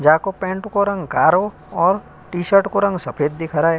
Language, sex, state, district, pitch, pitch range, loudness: Hindi, male, Uttar Pradesh, Hamirpur, 185 Hz, 160-195 Hz, -18 LUFS